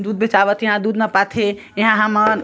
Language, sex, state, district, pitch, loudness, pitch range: Chhattisgarhi, female, Chhattisgarh, Sarguja, 215 Hz, -16 LUFS, 205-220 Hz